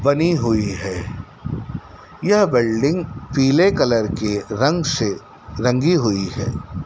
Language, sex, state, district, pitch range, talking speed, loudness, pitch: Hindi, male, Madhya Pradesh, Dhar, 105-150 Hz, 115 wpm, -19 LUFS, 120 Hz